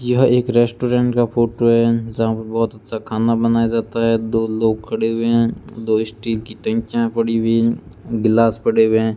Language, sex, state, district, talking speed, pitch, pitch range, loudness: Hindi, male, Rajasthan, Bikaner, 190 wpm, 115 Hz, 110-115 Hz, -18 LUFS